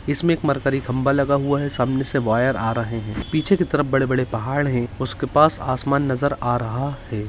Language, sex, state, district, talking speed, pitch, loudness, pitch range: Hindi, male, Uttarakhand, Uttarkashi, 220 wpm, 135 Hz, -21 LUFS, 120-140 Hz